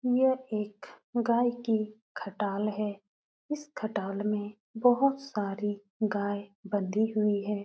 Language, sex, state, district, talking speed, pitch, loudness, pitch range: Hindi, female, Uttar Pradesh, Etah, 120 wpm, 210 Hz, -31 LUFS, 205-235 Hz